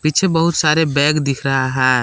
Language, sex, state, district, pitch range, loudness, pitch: Hindi, male, Jharkhand, Palamu, 135-160 Hz, -16 LUFS, 145 Hz